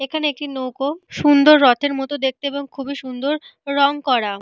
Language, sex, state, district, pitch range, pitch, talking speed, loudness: Bengali, female, Jharkhand, Jamtara, 265-290 Hz, 280 Hz, 165 wpm, -18 LUFS